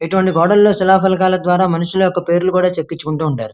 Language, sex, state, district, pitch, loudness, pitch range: Telugu, male, Andhra Pradesh, Krishna, 180 Hz, -14 LUFS, 165-190 Hz